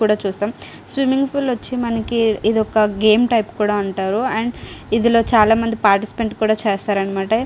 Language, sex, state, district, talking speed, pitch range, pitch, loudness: Telugu, female, Andhra Pradesh, Srikakulam, 145 wpm, 210-230 Hz, 220 Hz, -18 LUFS